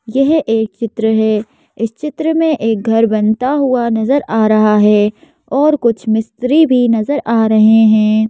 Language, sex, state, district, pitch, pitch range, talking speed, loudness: Hindi, female, Madhya Pradesh, Bhopal, 225 Hz, 220-275 Hz, 165 wpm, -13 LUFS